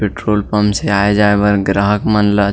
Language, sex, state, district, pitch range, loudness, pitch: Chhattisgarhi, male, Chhattisgarh, Sarguja, 100-105 Hz, -14 LUFS, 105 Hz